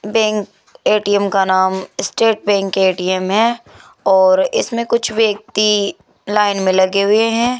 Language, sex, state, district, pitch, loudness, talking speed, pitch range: Hindi, female, Rajasthan, Jaipur, 205 Hz, -15 LUFS, 135 wpm, 190-225 Hz